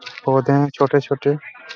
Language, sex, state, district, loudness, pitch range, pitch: Hindi, male, Chhattisgarh, Raigarh, -19 LUFS, 140-145 Hz, 140 Hz